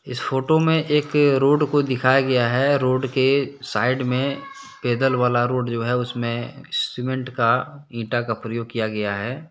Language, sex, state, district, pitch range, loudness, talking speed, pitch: Hindi, male, Jharkhand, Deoghar, 120-140 Hz, -21 LUFS, 175 wpm, 130 Hz